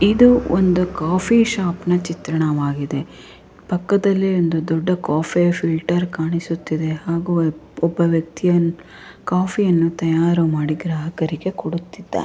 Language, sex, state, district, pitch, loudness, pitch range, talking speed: Kannada, female, Karnataka, Raichur, 170 Hz, -19 LUFS, 160-180 Hz, 110 wpm